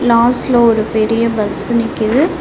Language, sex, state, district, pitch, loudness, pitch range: Tamil, female, Tamil Nadu, Nilgiris, 230 Hz, -13 LUFS, 220-245 Hz